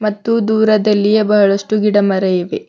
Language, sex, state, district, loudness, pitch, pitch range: Kannada, female, Karnataka, Bidar, -13 LUFS, 210 Hz, 200-215 Hz